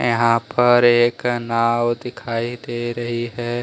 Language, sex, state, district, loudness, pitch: Hindi, male, Jharkhand, Deoghar, -19 LUFS, 120 Hz